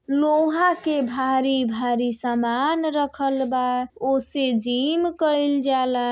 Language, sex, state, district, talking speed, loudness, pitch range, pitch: Bhojpuri, female, Uttar Pradesh, Deoria, 110 wpm, -22 LUFS, 250-295 Hz, 270 Hz